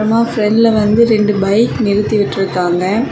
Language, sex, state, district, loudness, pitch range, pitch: Tamil, female, Tamil Nadu, Kanyakumari, -13 LUFS, 200-225 Hz, 210 Hz